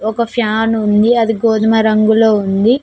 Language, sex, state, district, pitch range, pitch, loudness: Telugu, female, Telangana, Mahabubabad, 215-230 Hz, 220 Hz, -13 LUFS